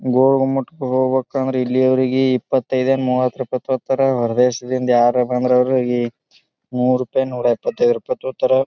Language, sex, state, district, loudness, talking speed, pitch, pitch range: Kannada, male, Karnataka, Bijapur, -18 LUFS, 110 wpm, 130 Hz, 125-135 Hz